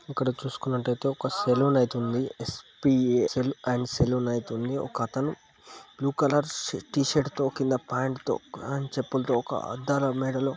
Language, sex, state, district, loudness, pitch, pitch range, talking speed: Telugu, male, Andhra Pradesh, Chittoor, -28 LUFS, 130 Hz, 125-140 Hz, 140 wpm